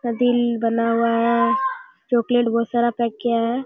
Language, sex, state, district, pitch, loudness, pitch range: Hindi, male, Bihar, Jamui, 235 Hz, -20 LUFS, 230-245 Hz